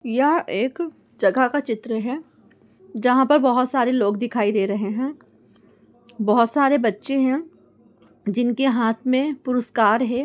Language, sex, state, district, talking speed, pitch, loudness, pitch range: Hindi, female, Chhattisgarh, Korba, 140 wpm, 250 Hz, -21 LUFS, 225-275 Hz